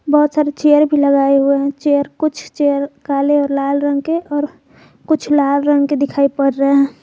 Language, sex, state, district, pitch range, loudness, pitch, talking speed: Hindi, female, Jharkhand, Garhwa, 280-295 Hz, -15 LUFS, 285 Hz, 205 wpm